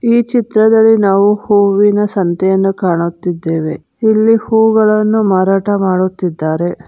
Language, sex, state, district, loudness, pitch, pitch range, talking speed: Kannada, female, Karnataka, Bangalore, -12 LUFS, 200 Hz, 185-220 Hz, 85 wpm